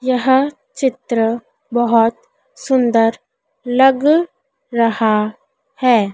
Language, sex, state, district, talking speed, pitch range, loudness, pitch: Hindi, female, Madhya Pradesh, Dhar, 70 wpm, 230-270 Hz, -16 LUFS, 250 Hz